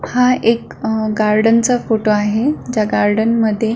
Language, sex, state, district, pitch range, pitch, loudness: Marathi, female, Maharashtra, Solapur, 215-235 Hz, 220 Hz, -15 LUFS